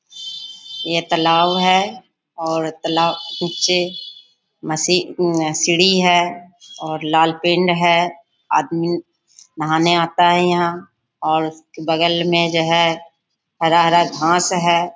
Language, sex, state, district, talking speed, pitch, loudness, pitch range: Hindi, female, Bihar, Bhagalpur, 100 wpm, 170 Hz, -17 LUFS, 165-175 Hz